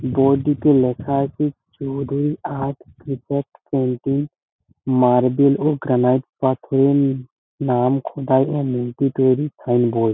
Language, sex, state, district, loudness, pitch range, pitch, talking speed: Bengali, male, West Bengal, Jhargram, -19 LUFS, 130-140 Hz, 135 Hz, 100 wpm